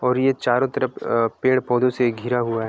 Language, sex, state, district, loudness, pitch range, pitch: Hindi, male, Jharkhand, Sahebganj, -21 LUFS, 120-130 Hz, 125 Hz